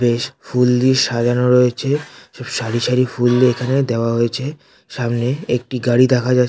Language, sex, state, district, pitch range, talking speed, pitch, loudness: Bengali, male, West Bengal, North 24 Parganas, 120-130 Hz, 155 wpm, 125 Hz, -17 LUFS